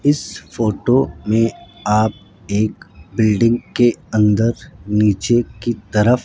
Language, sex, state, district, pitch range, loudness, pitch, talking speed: Hindi, male, Rajasthan, Jaipur, 105-120 Hz, -17 LUFS, 110 Hz, 115 wpm